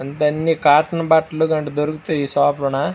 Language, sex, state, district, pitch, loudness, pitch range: Telugu, male, Andhra Pradesh, Srikakulam, 150 Hz, -18 LUFS, 145-160 Hz